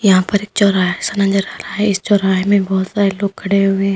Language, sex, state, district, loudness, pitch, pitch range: Hindi, female, Uttar Pradesh, Lalitpur, -15 LUFS, 195 Hz, 190-205 Hz